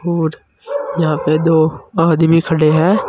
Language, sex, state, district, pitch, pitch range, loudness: Hindi, male, Uttar Pradesh, Saharanpur, 165 Hz, 160-170 Hz, -15 LUFS